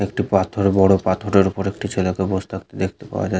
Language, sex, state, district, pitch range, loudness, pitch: Bengali, male, West Bengal, Malda, 95-100 Hz, -19 LUFS, 95 Hz